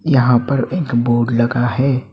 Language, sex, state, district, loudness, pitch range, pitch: Hindi, male, Assam, Hailakandi, -16 LUFS, 120-135 Hz, 125 Hz